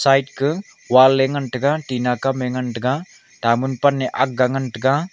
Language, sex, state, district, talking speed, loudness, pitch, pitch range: Wancho, male, Arunachal Pradesh, Longding, 185 wpm, -19 LUFS, 130 Hz, 125-140 Hz